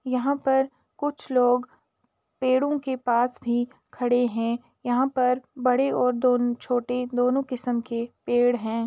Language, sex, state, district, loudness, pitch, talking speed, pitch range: Hindi, female, Uttar Pradesh, Etah, -25 LUFS, 250 Hz, 140 wpm, 245-260 Hz